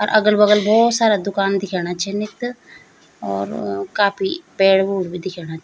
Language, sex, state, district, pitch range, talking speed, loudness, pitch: Garhwali, female, Uttarakhand, Tehri Garhwal, 180-215 Hz, 140 wpm, -18 LUFS, 200 Hz